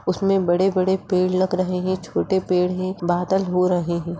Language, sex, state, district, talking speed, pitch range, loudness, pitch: Hindi, female, Uttar Pradesh, Etah, 185 wpm, 180-190 Hz, -21 LUFS, 185 Hz